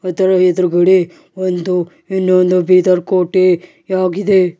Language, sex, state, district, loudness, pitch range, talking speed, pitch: Kannada, male, Karnataka, Bidar, -14 LUFS, 180-185 Hz, 80 wpm, 185 Hz